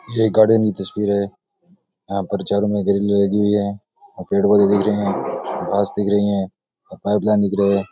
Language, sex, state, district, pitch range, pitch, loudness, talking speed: Rajasthani, male, Rajasthan, Nagaur, 100-105 Hz, 100 Hz, -19 LUFS, 220 wpm